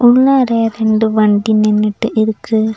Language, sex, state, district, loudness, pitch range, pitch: Tamil, female, Tamil Nadu, Nilgiris, -13 LUFS, 215-230 Hz, 220 Hz